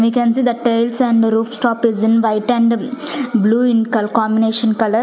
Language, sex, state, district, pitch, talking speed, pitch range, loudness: English, female, Punjab, Fazilka, 230 Hz, 190 wpm, 225-240 Hz, -15 LUFS